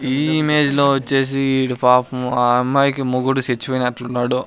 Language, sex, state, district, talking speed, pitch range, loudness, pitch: Telugu, male, Andhra Pradesh, Sri Satya Sai, 150 wpm, 125-140 Hz, -17 LUFS, 130 Hz